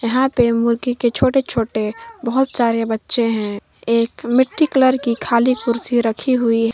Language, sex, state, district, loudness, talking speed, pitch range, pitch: Hindi, female, Jharkhand, Garhwa, -18 LUFS, 170 wpm, 230-255 Hz, 235 Hz